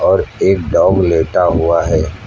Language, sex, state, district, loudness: Hindi, male, Uttar Pradesh, Lucknow, -13 LUFS